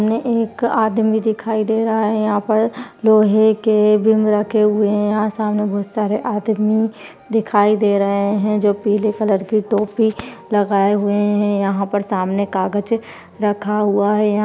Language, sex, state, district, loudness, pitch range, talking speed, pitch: Hindi, female, Uttar Pradesh, Budaun, -17 LUFS, 205-220 Hz, 165 wpm, 210 Hz